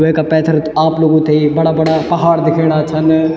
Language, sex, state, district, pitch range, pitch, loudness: Garhwali, male, Uttarakhand, Tehri Garhwal, 155-160 Hz, 160 Hz, -12 LUFS